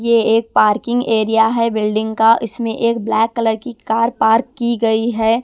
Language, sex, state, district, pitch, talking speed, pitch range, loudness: Hindi, female, Punjab, Kapurthala, 225 Hz, 185 wpm, 220-235 Hz, -16 LUFS